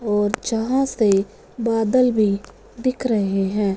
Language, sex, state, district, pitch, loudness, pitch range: Hindi, female, Punjab, Fazilka, 220 Hz, -20 LUFS, 200-240 Hz